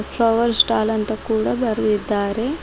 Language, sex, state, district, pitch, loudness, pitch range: Kannada, female, Karnataka, Bidar, 220 Hz, -19 LUFS, 215-230 Hz